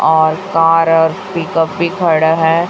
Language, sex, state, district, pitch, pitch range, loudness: Hindi, female, Chhattisgarh, Raipur, 165 Hz, 160-170 Hz, -13 LUFS